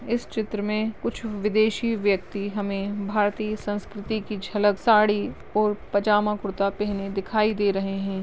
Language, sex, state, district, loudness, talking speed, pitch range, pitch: Hindi, female, Goa, North and South Goa, -25 LUFS, 145 wpm, 200-215 Hz, 205 Hz